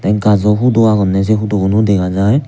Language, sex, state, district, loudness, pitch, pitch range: Chakma, male, Tripura, Unakoti, -13 LUFS, 105 Hz, 100-110 Hz